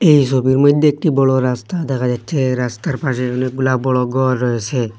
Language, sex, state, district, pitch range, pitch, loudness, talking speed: Bengali, male, Assam, Hailakandi, 125-140 Hz, 130 Hz, -16 LUFS, 170 wpm